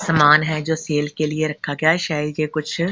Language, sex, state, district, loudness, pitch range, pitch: Hindi, female, Punjab, Kapurthala, -19 LUFS, 150-160 Hz, 155 Hz